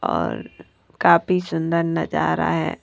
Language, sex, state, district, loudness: Hindi, female, Punjab, Kapurthala, -20 LUFS